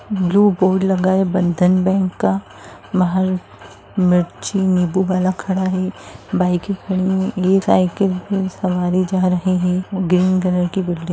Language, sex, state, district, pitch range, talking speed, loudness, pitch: Bhojpuri, female, Bihar, Saran, 180-190 Hz, 150 wpm, -18 LUFS, 185 Hz